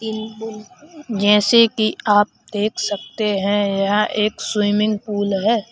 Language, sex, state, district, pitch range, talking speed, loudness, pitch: Hindi, male, Madhya Pradesh, Bhopal, 205-220 Hz, 135 wpm, -18 LUFS, 210 Hz